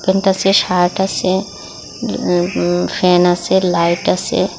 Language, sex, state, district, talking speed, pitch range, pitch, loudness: Bengali, female, Assam, Hailakandi, 130 wpm, 170-190 Hz, 180 Hz, -15 LUFS